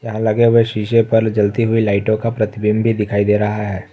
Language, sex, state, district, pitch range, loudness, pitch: Hindi, male, Jharkhand, Ranchi, 105-115 Hz, -16 LUFS, 110 Hz